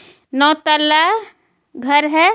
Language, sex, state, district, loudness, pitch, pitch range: Hindi, female, Jharkhand, Ranchi, -14 LUFS, 305 Hz, 295-330 Hz